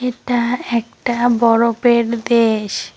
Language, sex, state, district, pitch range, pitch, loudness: Bengali, female, West Bengal, Cooch Behar, 230-245 Hz, 235 Hz, -16 LUFS